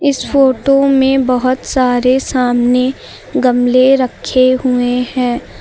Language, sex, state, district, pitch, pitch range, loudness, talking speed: Hindi, female, Uttar Pradesh, Lucknow, 255 Hz, 250-265 Hz, -12 LUFS, 105 wpm